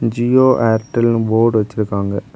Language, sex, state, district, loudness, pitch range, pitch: Tamil, male, Tamil Nadu, Kanyakumari, -15 LUFS, 110-120 Hz, 115 Hz